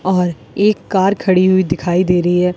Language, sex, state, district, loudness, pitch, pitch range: Hindi, female, Rajasthan, Bikaner, -15 LUFS, 180 Hz, 175-190 Hz